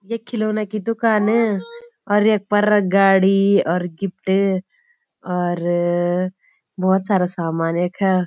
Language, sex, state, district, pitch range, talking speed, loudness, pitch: Garhwali, female, Uttarakhand, Uttarkashi, 180-215 Hz, 110 wpm, -19 LUFS, 195 Hz